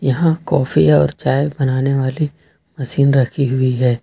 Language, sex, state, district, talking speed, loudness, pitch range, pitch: Hindi, male, Jharkhand, Ranchi, 150 wpm, -16 LUFS, 130-140 Hz, 135 Hz